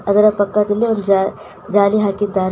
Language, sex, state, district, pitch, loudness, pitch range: Kannada, female, Karnataka, Koppal, 205 Hz, -16 LUFS, 200-210 Hz